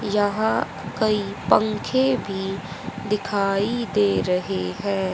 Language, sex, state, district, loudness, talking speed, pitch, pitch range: Hindi, female, Haryana, Rohtak, -23 LUFS, 95 wpm, 200 Hz, 195-215 Hz